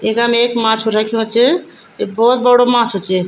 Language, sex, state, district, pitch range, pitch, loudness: Garhwali, female, Uttarakhand, Tehri Garhwal, 220-245 Hz, 235 Hz, -13 LUFS